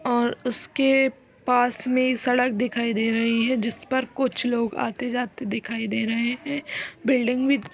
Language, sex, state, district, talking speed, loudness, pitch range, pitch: Hindi, female, Uttar Pradesh, Etah, 170 wpm, -24 LUFS, 230-255 Hz, 245 Hz